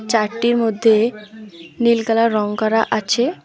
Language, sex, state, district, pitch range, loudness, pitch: Bengali, female, West Bengal, Alipurduar, 215-230 Hz, -17 LUFS, 225 Hz